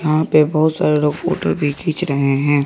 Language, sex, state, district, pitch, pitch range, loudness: Hindi, male, Jharkhand, Garhwa, 155 Hz, 145-160 Hz, -17 LUFS